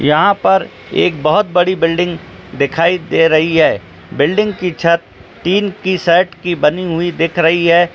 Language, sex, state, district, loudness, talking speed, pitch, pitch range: Hindi, male, Jharkhand, Jamtara, -14 LUFS, 165 wpm, 170 Hz, 165-180 Hz